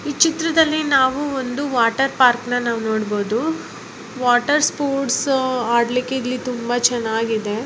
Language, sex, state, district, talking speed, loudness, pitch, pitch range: Kannada, female, Karnataka, Bellary, 115 wpm, -19 LUFS, 250 Hz, 230-275 Hz